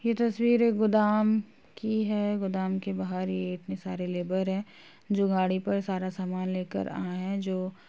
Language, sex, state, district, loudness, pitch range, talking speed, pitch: Hindi, female, Uttar Pradesh, Jalaun, -29 LUFS, 185-210 Hz, 180 wpm, 190 Hz